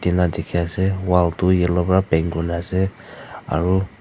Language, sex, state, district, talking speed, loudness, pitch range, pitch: Nagamese, female, Nagaland, Dimapur, 150 wpm, -20 LUFS, 85-95 Hz, 90 Hz